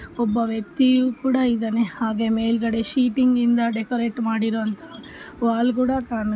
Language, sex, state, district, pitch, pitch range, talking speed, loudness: Kannada, female, Karnataka, Bellary, 230 Hz, 225-250 Hz, 130 wpm, -21 LUFS